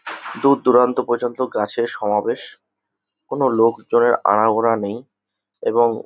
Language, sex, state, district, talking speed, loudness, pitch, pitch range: Bengali, male, West Bengal, Kolkata, 90 wpm, -18 LUFS, 115 Hz, 105-120 Hz